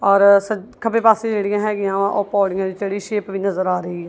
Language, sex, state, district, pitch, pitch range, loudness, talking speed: Punjabi, female, Punjab, Kapurthala, 200 Hz, 195-210 Hz, -18 LUFS, 205 wpm